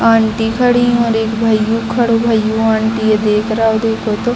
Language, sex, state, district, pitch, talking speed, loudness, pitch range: Hindi, female, Bihar, Gopalganj, 225 Hz, 195 wpm, -14 LUFS, 220-230 Hz